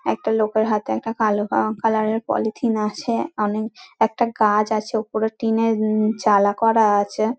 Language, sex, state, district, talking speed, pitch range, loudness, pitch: Bengali, female, West Bengal, Dakshin Dinajpur, 160 wpm, 215-225 Hz, -20 LUFS, 220 Hz